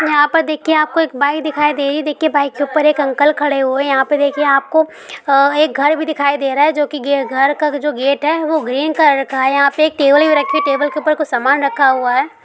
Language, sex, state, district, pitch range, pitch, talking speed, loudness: Hindi, female, Bihar, Sitamarhi, 275-305 Hz, 290 Hz, 260 wpm, -14 LUFS